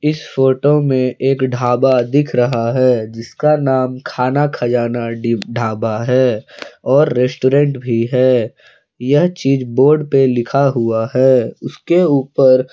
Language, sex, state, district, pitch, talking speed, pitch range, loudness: Hindi, male, Jharkhand, Palamu, 130 Hz, 130 wpm, 120-140 Hz, -15 LUFS